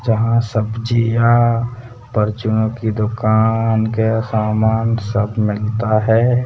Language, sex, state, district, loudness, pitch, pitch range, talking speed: Hindi, male, Rajasthan, Jaipur, -17 LUFS, 110 Hz, 110-115 Hz, 95 wpm